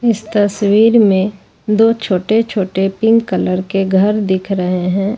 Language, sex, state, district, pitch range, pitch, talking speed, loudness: Hindi, female, Jharkhand, Ranchi, 190-220 Hz, 200 Hz, 150 wpm, -14 LUFS